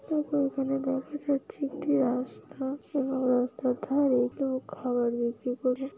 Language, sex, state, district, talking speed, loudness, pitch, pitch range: Bengali, female, West Bengal, Paschim Medinipur, 130 wpm, -29 LUFS, 265 Hz, 250-280 Hz